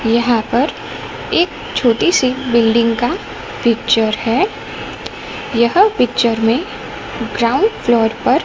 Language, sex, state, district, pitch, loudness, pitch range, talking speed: Hindi, female, Gujarat, Gandhinagar, 235 Hz, -15 LUFS, 230-270 Hz, 105 wpm